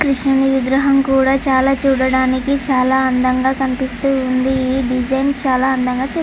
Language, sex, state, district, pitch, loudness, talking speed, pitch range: Telugu, female, Andhra Pradesh, Chittoor, 265 Hz, -15 LUFS, 135 wpm, 260-270 Hz